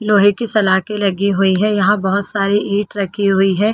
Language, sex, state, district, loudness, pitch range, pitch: Hindi, female, Chhattisgarh, Bilaspur, -15 LUFS, 195-210 Hz, 200 Hz